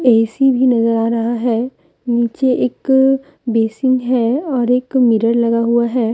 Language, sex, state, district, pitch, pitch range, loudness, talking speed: Hindi, female, Jharkhand, Deoghar, 240 Hz, 230-255 Hz, -15 LUFS, 155 wpm